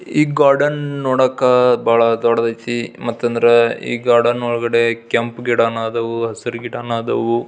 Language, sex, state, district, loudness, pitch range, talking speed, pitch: Kannada, male, Karnataka, Belgaum, -16 LUFS, 115-120 Hz, 120 wpm, 120 Hz